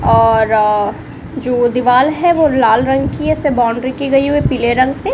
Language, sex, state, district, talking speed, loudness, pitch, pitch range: Hindi, female, Bihar, Kaimur, 210 wpm, -13 LUFS, 255 Hz, 230-280 Hz